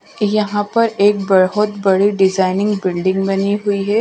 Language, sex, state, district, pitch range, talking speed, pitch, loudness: Hindi, female, Punjab, Kapurthala, 190-210 Hz, 150 wpm, 200 Hz, -15 LUFS